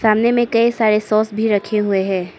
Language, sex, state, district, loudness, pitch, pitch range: Hindi, male, Arunachal Pradesh, Papum Pare, -16 LUFS, 215 Hz, 205-230 Hz